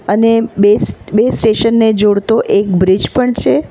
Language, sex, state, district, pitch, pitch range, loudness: Gujarati, female, Gujarat, Valsad, 220 Hz, 205-230 Hz, -12 LUFS